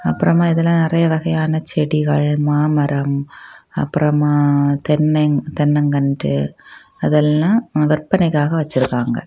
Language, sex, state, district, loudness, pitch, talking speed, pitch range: Tamil, female, Tamil Nadu, Kanyakumari, -17 LUFS, 150 Hz, 80 wpm, 145-160 Hz